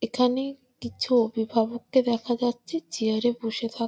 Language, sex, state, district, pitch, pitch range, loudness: Bengali, female, West Bengal, Malda, 240 Hz, 225-250 Hz, -26 LUFS